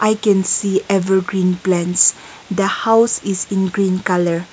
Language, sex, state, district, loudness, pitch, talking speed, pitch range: English, female, Nagaland, Kohima, -16 LUFS, 190 Hz, 145 wpm, 185-200 Hz